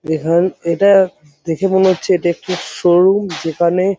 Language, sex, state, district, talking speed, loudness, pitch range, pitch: Bengali, male, West Bengal, Jhargram, 150 wpm, -15 LUFS, 170-190 Hz, 175 Hz